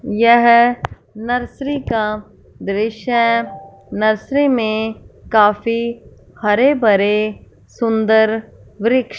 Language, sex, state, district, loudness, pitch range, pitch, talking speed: Hindi, female, Punjab, Fazilka, -16 LUFS, 215-240 Hz, 220 Hz, 65 wpm